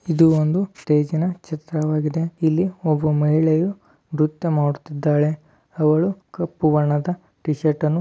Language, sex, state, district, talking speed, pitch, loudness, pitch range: Kannada, male, Karnataka, Dharwad, 140 wpm, 155 Hz, -21 LUFS, 150-170 Hz